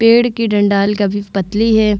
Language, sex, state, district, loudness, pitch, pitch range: Hindi, female, Bihar, Vaishali, -14 LUFS, 210 Hz, 200-225 Hz